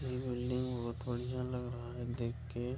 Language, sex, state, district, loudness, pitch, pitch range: Hindi, male, Bihar, Kishanganj, -39 LUFS, 125 Hz, 120-125 Hz